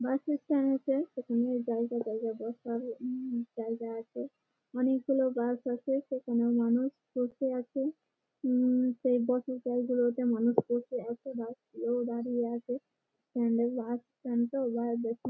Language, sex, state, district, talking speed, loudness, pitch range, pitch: Bengali, female, West Bengal, Malda, 140 wpm, -32 LUFS, 235-255 Hz, 245 Hz